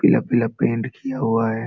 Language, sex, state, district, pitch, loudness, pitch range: Hindi, male, Bihar, Jamui, 115 Hz, -21 LUFS, 115-120 Hz